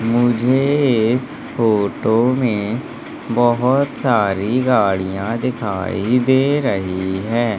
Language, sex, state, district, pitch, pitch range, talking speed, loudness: Hindi, male, Madhya Pradesh, Umaria, 120 Hz, 100-125 Hz, 85 wpm, -17 LUFS